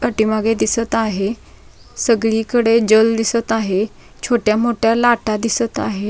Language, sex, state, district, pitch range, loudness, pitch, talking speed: Marathi, female, Maharashtra, Dhule, 220-230 Hz, -17 LUFS, 225 Hz, 130 wpm